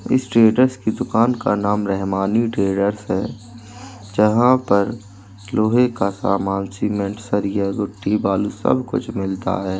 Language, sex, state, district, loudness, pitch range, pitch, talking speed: Hindi, male, Uttar Pradesh, Jalaun, -19 LUFS, 100-115 Hz, 105 Hz, 135 wpm